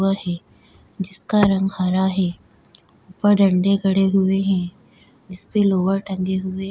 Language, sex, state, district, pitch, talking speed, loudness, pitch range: Hindi, female, Goa, North and South Goa, 190 Hz, 150 wpm, -20 LUFS, 185-195 Hz